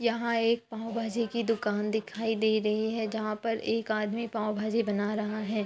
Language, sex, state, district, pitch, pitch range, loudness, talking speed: Hindi, female, Uttar Pradesh, Muzaffarnagar, 220 Hz, 215-230 Hz, -30 LUFS, 180 wpm